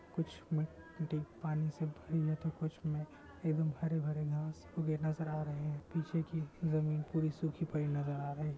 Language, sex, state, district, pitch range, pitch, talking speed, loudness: Hindi, male, Bihar, Muzaffarpur, 150-160 Hz, 155 Hz, 190 wpm, -38 LUFS